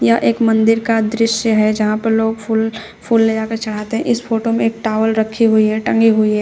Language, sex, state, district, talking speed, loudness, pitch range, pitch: Hindi, female, Uttar Pradesh, Shamli, 245 wpm, -15 LUFS, 215-225 Hz, 225 Hz